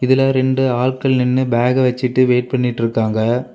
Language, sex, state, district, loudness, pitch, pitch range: Tamil, male, Tamil Nadu, Kanyakumari, -16 LUFS, 125 Hz, 120-130 Hz